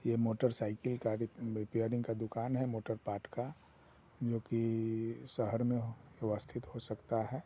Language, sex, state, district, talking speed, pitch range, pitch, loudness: Hindi, female, Bihar, Muzaffarpur, 160 wpm, 110-120 Hz, 115 Hz, -38 LUFS